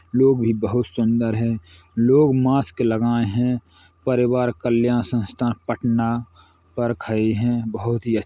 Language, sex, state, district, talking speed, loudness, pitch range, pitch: Hindi, male, Uttar Pradesh, Hamirpur, 140 wpm, -21 LUFS, 110-120 Hz, 120 Hz